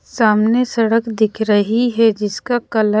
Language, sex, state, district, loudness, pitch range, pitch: Hindi, female, Odisha, Khordha, -16 LUFS, 215-235 Hz, 225 Hz